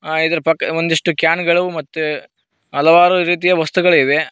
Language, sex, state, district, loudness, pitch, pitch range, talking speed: Kannada, male, Karnataka, Koppal, -15 LUFS, 165 Hz, 160-175 Hz, 140 wpm